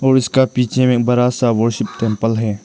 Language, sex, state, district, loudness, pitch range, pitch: Hindi, male, Arunachal Pradesh, Lower Dibang Valley, -16 LUFS, 115-125 Hz, 125 Hz